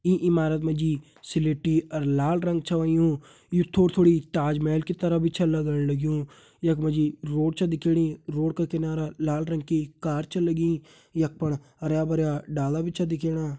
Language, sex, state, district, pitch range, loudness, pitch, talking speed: Hindi, male, Uttarakhand, Uttarkashi, 150-165 Hz, -26 LUFS, 160 Hz, 185 wpm